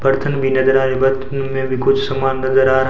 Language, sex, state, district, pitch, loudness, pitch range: Hindi, male, Rajasthan, Bikaner, 135 Hz, -16 LUFS, 130-135 Hz